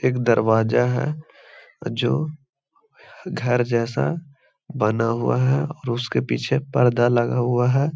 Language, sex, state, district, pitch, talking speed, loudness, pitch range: Hindi, male, Bihar, Gaya, 125 Hz, 120 wpm, -21 LUFS, 120-140 Hz